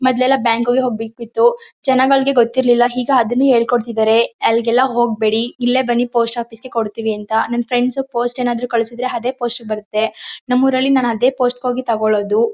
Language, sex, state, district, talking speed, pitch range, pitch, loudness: Kannada, female, Karnataka, Mysore, 160 wpm, 230-255 Hz, 240 Hz, -16 LUFS